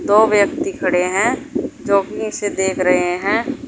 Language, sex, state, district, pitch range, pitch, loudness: Hindi, female, Uttar Pradesh, Saharanpur, 190-280 Hz, 210 Hz, -17 LUFS